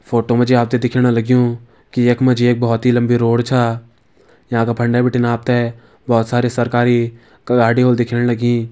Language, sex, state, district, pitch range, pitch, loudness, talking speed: Hindi, male, Uttarakhand, Tehri Garhwal, 115-125 Hz, 120 Hz, -15 LUFS, 195 wpm